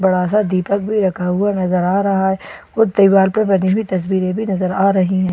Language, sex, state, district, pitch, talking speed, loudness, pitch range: Hindi, female, Bihar, Katihar, 190 Hz, 235 wpm, -16 LUFS, 185-200 Hz